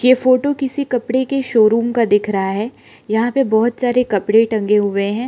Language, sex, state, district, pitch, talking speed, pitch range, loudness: Hindi, male, Arunachal Pradesh, Lower Dibang Valley, 235 Hz, 205 wpm, 210-255 Hz, -16 LUFS